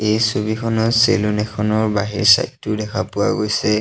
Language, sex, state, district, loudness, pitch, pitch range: Assamese, male, Assam, Sonitpur, -18 LUFS, 110 Hz, 105-110 Hz